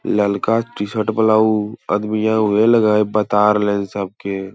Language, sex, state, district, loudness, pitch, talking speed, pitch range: Hindi, male, Bihar, Lakhisarai, -17 LUFS, 105 Hz, 160 wpm, 105-110 Hz